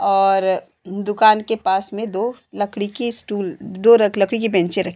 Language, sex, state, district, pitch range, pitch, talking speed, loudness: Hindi, female, Uttar Pradesh, Jalaun, 190-220 Hz, 205 Hz, 180 wpm, -18 LUFS